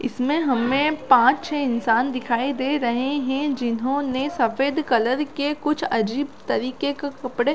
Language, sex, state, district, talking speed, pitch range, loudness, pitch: Hindi, female, Chhattisgarh, Korba, 145 wpm, 250-290 Hz, -22 LUFS, 270 Hz